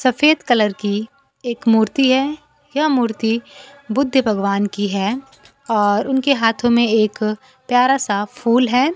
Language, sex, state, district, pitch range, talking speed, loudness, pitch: Hindi, female, Bihar, Kaimur, 215-275 Hz, 140 wpm, -17 LUFS, 245 Hz